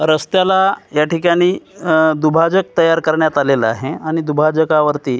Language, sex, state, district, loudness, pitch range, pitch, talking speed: Marathi, male, Maharashtra, Gondia, -15 LUFS, 150-170 Hz, 160 Hz, 125 wpm